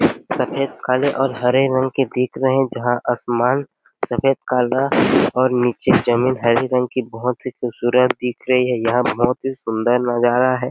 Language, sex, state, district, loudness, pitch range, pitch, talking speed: Hindi, male, Chhattisgarh, Sarguja, -18 LUFS, 120-130 Hz, 125 Hz, 185 wpm